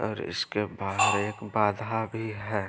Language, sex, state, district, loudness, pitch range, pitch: Hindi, male, Bihar, Araria, -28 LUFS, 100-110 Hz, 105 Hz